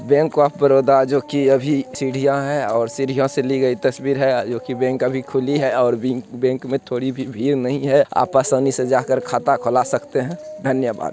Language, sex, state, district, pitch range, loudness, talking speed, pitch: Hindi, male, Bihar, Purnia, 130-140 Hz, -19 LUFS, 215 wpm, 135 Hz